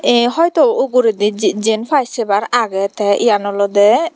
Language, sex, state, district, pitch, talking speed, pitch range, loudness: Chakma, female, Tripura, Dhalai, 225 Hz, 145 wpm, 205-245 Hz, -14 LUFS